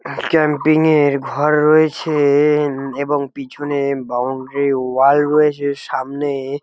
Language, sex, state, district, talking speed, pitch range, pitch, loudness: Bengali, male, West Bengal, Jalpaiguri, 110 wpm, 135-150 Hz, 140 Hz, -16 LUFS